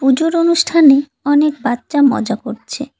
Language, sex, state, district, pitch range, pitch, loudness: Bengali, female, West Bengal, Cooch Behar, 265-305 Hz, 280 Hz, -14 LUFS